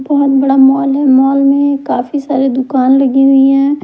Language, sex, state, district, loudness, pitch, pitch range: Hindi, male, Delhi, New Delhi, -10 LUFS, 275 Hz, 270-280 Hz